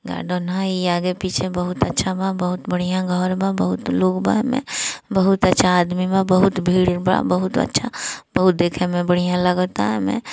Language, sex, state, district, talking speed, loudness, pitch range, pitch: Bhojpuri, female, Bihar, East Champaran, 175 wpm, -19 LUFS, 180-185 Hz, 180 Hz